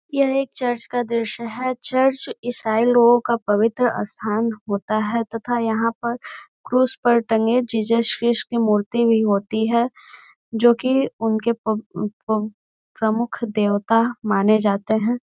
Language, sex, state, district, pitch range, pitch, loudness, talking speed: Hindi, female, Uttar Pradesh, Gorakhpur, 220-240 Hz, 230 Hz, -20 LUFS, 145 wpm